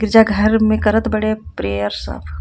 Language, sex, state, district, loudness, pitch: Bhojpuri, female, Jharkhand, Palamu, -16 LUFS, 210 Hz